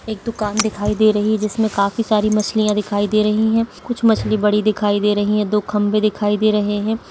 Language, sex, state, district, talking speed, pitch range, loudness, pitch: Hindi, female, Bihar, Madhepura, 230 wpm, 210-220 Hz, -18 LUFS, 215 Hz